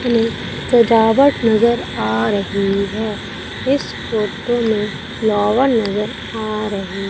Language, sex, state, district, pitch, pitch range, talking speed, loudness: Hindi, female, Madhya Pradesh, Umaria, 220 Hz, 205-235 Hz, 110 wpm, -17 LUFS